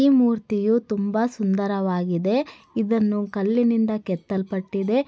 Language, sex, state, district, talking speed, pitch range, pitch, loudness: Kannada, female, Karnataka, Bellary, 80 wpm, 195-230 Hz, 210 Hz, -23 LUFS